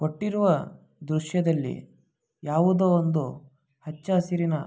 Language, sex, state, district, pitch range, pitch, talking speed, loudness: Kannada, male, Karnataka, Mysore, 155-180 Hz, 160 Hz, 75 wpm, -25 LUFS